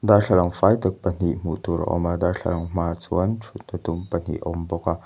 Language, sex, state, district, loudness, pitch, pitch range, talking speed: Mizo, male, Mizoram, Aizawl, -23 LUFS, 85 Hz, 85-95 Hz, 235 wpm